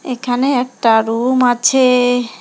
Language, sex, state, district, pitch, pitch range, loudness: Bengali, female, West Bengal, Alipurduar, 245 Hz, 240-255 Hz, -14 LUFS